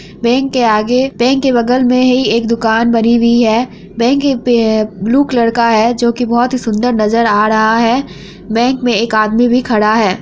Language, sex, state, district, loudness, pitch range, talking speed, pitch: Hindi, female, Bihar, Araria, -12 LUFS, 220-245 Hz, 210 wpm, 235 Hz